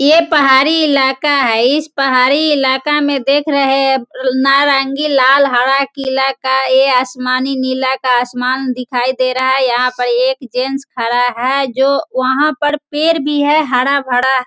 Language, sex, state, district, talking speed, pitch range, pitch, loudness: Hindi, female, Bihar, Sitamarhi, 155 wpm, 255-280 Hz, 265 Hz, -13 LUFS